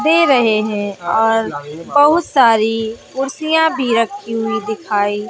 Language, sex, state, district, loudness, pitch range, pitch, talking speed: Hindi, female, Bihar, West Champaran, -15 LUFS, 210-270 Hz, 225 Hz, 125 wpm